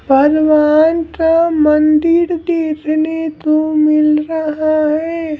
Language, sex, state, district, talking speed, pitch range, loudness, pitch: Hindi, male, Bihar, Patna, 90 wpm, 305-325 Hz, -13 LUFS, 310 Hz